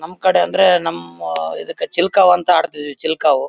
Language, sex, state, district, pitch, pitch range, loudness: Kannada, male, Karnataka, Bellary, 170 Hz, 145-185 Hz, -16 LUFS